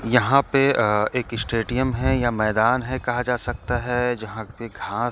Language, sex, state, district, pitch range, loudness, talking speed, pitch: Chhattisgarhi, male, Chhattisgarh, Korba, 115-125 Hz, -22 LUFS, 175 wpm, 120 Hz